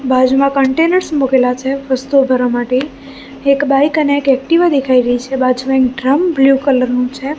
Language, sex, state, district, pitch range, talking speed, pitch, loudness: Gujarati, female, Gujarat, Gandhinagar, 255-280 Hz, 180 wpm, 270 Hz, -13 LUFS